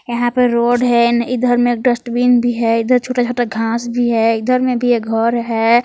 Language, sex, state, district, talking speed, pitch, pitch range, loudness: Hindi, female, Jharkhand, Palamu, 215 wpm, 240 Hz, 235-245 Hz, -15 LUFS